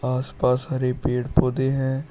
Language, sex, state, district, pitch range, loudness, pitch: Hindi, male, Uttar Pradesh, Shamli, 125-135 Hz, -23 LUFS, 130 Hz